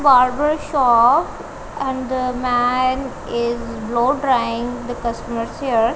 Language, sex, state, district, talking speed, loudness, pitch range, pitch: English, female, Punjab, Kapurthala, 110 wpm, -19 LUFS, 235-260 Hz, 245 Hz